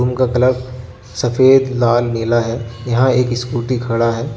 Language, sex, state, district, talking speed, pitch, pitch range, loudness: Hindi, male, Jharkhand, Garhwa, 150 wpm, 120 Hz, 115-125 Hz, -16 LUFS